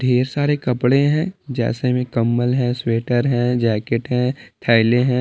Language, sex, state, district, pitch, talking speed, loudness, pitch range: Hindi, male, Bihar, Patna, 125 Hz, 160 wpm, -19 LUFS, 120-130 Hz